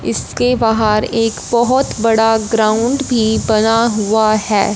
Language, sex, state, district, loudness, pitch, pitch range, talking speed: Hindi, female, Punjab, Fazilka, -14 LUFS, 225 Hz, 215-230 Hz, 125 wpm